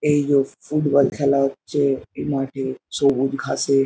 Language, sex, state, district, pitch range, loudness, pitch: Bengali, male, West Bengal, Jhargram, 135-145 Hz, -21 LUFS, 140 Hz